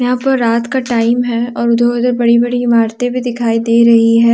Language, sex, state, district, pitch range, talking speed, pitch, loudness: Hindi, female, Jharkhand, Deoghar, 230-245 Hz, 205 wpm, 235 Hz, -12 LUFS